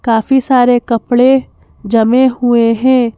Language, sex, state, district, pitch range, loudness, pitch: Hindi, female, Madhya Pradesh, Bhopal, 230-260 Hz, -11 LUFS, 245 Hz